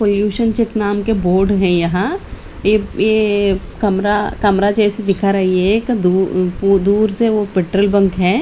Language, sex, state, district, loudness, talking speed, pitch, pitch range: Hindi, female, Chandigarh, Chandigarh, -15 LUFS, 165 wpm, 205 Hz, 190-210 Hz